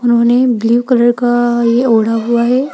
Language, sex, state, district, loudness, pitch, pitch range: Hindi, female, Bihar, Begusarai, -12 LUFS, 240 Hz, 235-245 Hz